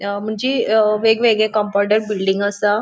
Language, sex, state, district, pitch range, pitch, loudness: Konkani, female, Goa, North and South Goa, 205-220 Hz, 215 Hz, -17 LUFS